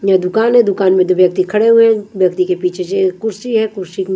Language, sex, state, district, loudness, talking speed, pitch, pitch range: Hindi, female, Punjab, Kapurthala, -13 LUFS, 260 wpm, 215 Hz, 190-235 Hz